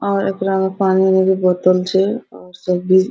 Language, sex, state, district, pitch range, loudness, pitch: Hindi, female, Bihar, Araria, 185-195 Hz, -16 LUFS, 190 Hz